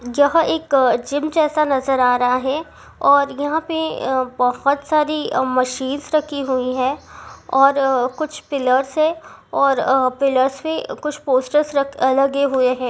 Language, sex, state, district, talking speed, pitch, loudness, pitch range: Hindi, female, Rajasthan, Churu, 135 wpm, 275 Hz, -18 LUFS, 260-300 Hz